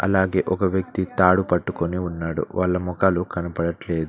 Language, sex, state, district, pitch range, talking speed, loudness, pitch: Telugu, male, Telangana, Mahabubabad, 85-95 Hz, 130 wpm, -22 LUFS, 90 Hz